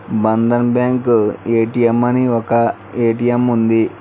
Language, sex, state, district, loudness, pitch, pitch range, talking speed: Telugu, male, Telangana, Hyderabad, -15 LUFS, 115 Hz, 115-120 Hz, 105 wpm